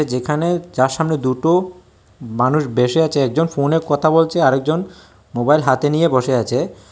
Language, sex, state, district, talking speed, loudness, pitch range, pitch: Bengali, male, Tripura, West Tripura, 145 wpm, -17 LUFS, 130-160 Hz, 145 Hz